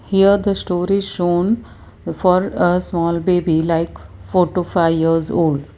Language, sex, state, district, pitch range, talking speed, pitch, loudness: English, female, Gujarat, Valsad, 165-185 Hz, 145 wpm, 175 Hz, -17 LUFS